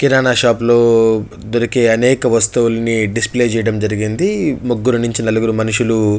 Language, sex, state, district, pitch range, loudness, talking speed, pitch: Telugu, male, Andhra Pradesh, Chittoor, 110-120 Hz, -14 LUFS, 135 wpm, 115 Hz